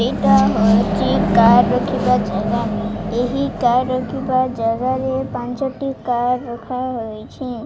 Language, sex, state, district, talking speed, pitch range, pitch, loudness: Odia, female, Odisha, Malkangiri, 125 wpm, 225-255 Hz, 245 Hz, -18 LUFS